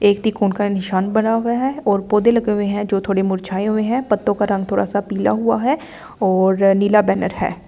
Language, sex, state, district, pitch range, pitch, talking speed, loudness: Hindi, female, Delhi, New Delhi, 195-220 Hz, 205 Hz, 225 wpm, -18 LUFS